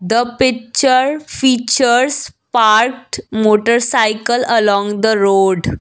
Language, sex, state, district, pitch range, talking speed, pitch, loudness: English, female, Assam, Kamrup Metropolitan, 215-255 Hz, 80 wpm, 235 Hz, -14 LUFS